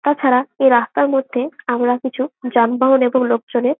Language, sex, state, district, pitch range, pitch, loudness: Bengali, female, West Bengal, Malda, 245-270 Hz, 255 Hz, -17 LUFS